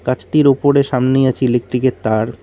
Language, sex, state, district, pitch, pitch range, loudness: Bengali, male, West Bengal, Cooch Behar, 125 Hz, 120-135 Hz, -15 LUFS